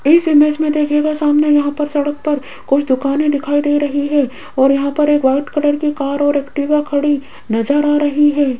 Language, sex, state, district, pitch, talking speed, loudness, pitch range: Hindi, female, Rajasthan, Jaipur, 290 Hz, 210 wpm, -15 LUFS, 280-295 Hz